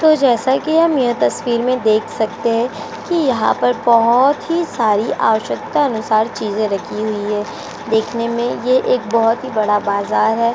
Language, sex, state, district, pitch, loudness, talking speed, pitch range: Hindi, female, Uttar Pradesh, Jyotiba Phule Nagar, 230 Hz, -16 LUFS, 175 wpm, 220-265 Hz